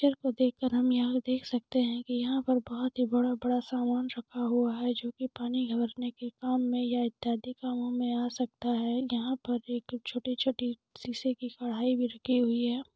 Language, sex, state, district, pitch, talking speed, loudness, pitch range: Hindi, female, Jharkhand, Sahebganj, 245 Hz, 205 wpm, -31 LUFS, 240-255 Hz